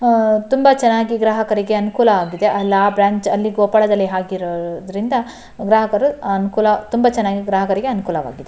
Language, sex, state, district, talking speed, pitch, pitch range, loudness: Kannada, female, Karnataka, Shimoga, 120 wpm, 210 Hz, 195-225 Hz, -16 LUFS